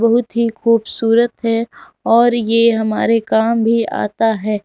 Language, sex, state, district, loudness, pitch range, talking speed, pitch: Hindi, female, Jharkhand, Garhwa, -15 LUFS, 225-230 Hz, 130 wpm, 230 Hz